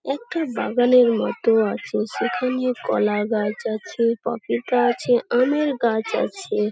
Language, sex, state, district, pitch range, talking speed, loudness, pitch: Bengali, female, West Bengal, Malda, 220-255 Hz, 125 wpm, -21 LUFS, 240 Hz